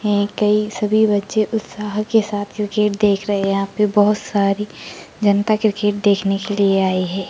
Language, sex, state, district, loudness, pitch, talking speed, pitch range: Hindi, female, Bihar, Begusarai, -18 LUFS, 205 Hz, 165 wpm, 200-210 Hz